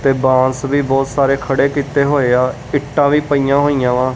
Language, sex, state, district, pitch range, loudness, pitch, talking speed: Punjabi, male, Punjab, Kapurthala, 130-145 Hz, -15 LUFS, 135 Hz, 200 wpm